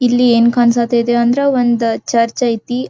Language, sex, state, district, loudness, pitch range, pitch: Kannada, female, Karnataka, Belgaum, -13 LUFS, 235-245 Hz, 240 Hz